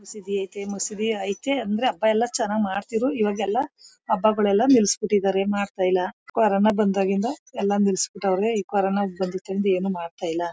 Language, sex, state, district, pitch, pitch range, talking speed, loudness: Kannada, female, Karnataka, Mysore, 200 Hz, 195-215 Hz, 125 wpm, -23 LUFS